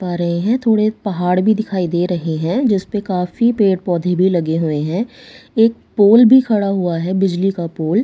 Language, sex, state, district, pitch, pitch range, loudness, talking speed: Hindi, female, Bihar, Katihar, 190 Hz, 175-220 Hz, -16 LUFS, 230 wpm